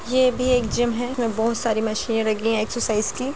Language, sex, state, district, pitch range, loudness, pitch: Hindi, female, Bihar, Jahanabad, 220-250 Hz, -22 LUFS, 235 Hz